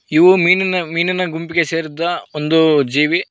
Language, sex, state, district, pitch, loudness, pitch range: Kannada, male, Karnataka, Koppal, 165 Hz, -15 LUFS, 160-180 Hz